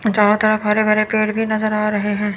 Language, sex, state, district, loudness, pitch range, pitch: Hindi, male, Chandigarh, Chandigarh, -17 LUFS, 210-215 Hz, 215 Hz